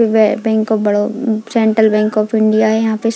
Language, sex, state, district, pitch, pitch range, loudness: Hindi, female, Bihar, Muzaffarpur, 220 Hz, 215-225 Hz, -14 LUFS